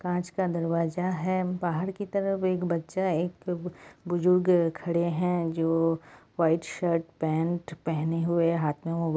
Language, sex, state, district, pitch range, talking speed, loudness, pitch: Hindi, female, West Bengal, Jalpaiguri, 165-180 Hz, 150 wpm, -28 LUFS, 170 Hz